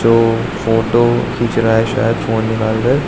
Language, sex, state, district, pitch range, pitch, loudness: Hindi, male, Arunachal Pradesh, Lower Dibang Valley, 110-120 Hz, 115 Hz, -15 LUFS